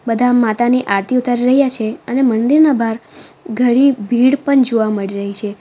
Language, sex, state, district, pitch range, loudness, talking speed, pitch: Gujarati, female, Gujarat, Valsad, 220-260 Hz, -14 LUFS, 170 wpm, 240 Hz